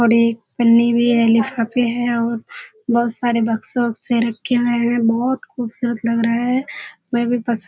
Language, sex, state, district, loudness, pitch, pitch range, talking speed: Hindi, female, Bihar, Kishanganj, -18 LUFS, 235 Hz, 230-240 Hz, 180 wpm